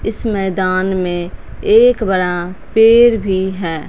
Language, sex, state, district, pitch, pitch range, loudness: Hindi, female, Punjab, Fazilka, 190 Hz, 180-220 Hz, -14 LUFS